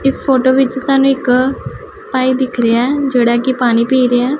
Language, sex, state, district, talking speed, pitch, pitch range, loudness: Punjabi, female, Punjab, Pathankot, 205 wpm, 260 Hz, 245-270 Hz, -13 LUFS